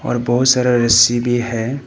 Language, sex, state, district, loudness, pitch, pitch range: Hindi, male, Arunachal Pradesh, Papum Pare, -14 LUFS, 120 Hz, 120-125 Hz